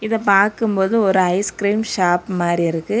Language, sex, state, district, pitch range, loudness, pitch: Tamil, female, Tamil Nadu, Kanyakumari, 180-215 Hz, -17 LUFS, 195 Hz